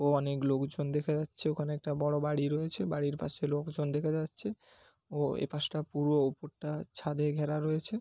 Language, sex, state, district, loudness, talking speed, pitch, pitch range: Bengali, male, West Bengal, Paschim Medinipur, -33 LUFS, 170 wpm, 150 Hz, 145-155 Hz